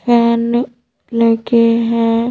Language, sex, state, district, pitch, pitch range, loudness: Hindi, female, Madhya Pradesh, Bhopal, 230 Hz, 230-240 Hz, -14 LUFS